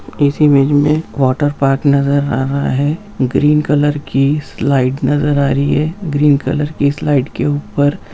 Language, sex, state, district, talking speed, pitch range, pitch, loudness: Hindi, male, Bihar, Saran, 160 wpm, 140-145 Hz, 145 Hz, -14 LUFS